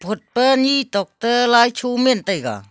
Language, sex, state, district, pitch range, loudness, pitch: Wancho, female, Arunachal Pradesh, Longding, 200-250 Hz, -17 LUFS, 235 Hz